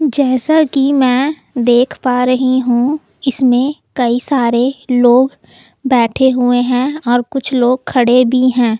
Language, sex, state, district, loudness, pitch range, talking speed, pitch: Hindi, female, Delhi, New Delhi, -13 LUFS, 245-270 Hz, 135 wpm, 255 Hz